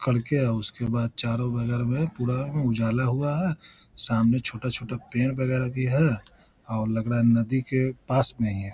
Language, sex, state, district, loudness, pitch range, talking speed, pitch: Hindi, male, Bihar, Lakhisarai, -26 LUFS, 115-130 Hz, 200 wpm, 125 Hz